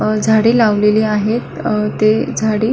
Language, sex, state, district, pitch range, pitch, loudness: Marathi, female, Maharashtra, Solapur, 210-220 Hz, 215 Hz, -14 LUFS